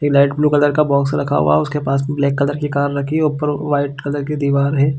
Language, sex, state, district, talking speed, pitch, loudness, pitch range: Hindi, male, Chhattisgarh, Bilaspur, 290 wpm, 145 Hz, -17 LUFS, 140-145 Hz